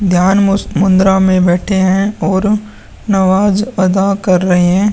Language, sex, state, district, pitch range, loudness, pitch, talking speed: Hindi, male, Bihar, Vaishali, 185-200 Hz, -12 LUFS, 190 Hz, 145 wpm